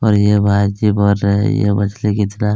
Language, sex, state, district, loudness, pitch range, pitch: Hindi, male, Chhattisgarh, Kabirdham, -15 LUFS, 100-105 Hz, 100 Hz